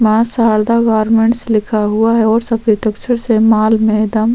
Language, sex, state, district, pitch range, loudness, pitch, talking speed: Hindi, female, Chhattisgarh, Korba, 215-230 Hz, -13 LUFS, 225 Hz, 165 wpm